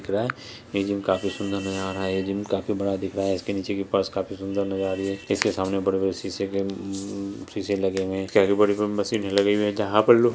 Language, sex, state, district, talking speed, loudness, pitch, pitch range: Hindi, female, Bihar, Saharsa, 285 wpm, -25 LUFS, 100 Hz, 95-100 Hz